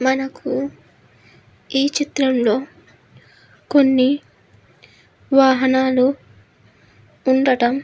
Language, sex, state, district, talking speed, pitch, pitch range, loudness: Telugu, female, Andhra Pradesh, Visakhapatnam, 55 wpm, 260 Hz, 240-270 Hz, -18 LUFS